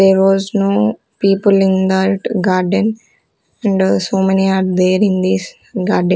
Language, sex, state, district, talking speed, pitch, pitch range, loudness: English, female, Chandigarh, Chandigarh, 155 wpm, 190 Hz, 185-195 Hz, -14 LUFS